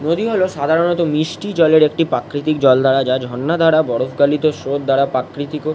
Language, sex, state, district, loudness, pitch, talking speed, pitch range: Bengali, male, West Bengal, Jalpaiguri, -16 LUFS, 150 Hz, 210 wpm, 135-165 Hz